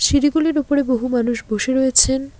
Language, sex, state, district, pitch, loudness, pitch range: Bengali, female, West Bengal, Alipurduar, 265 Hz, -17 LUFS, 250-285 Hz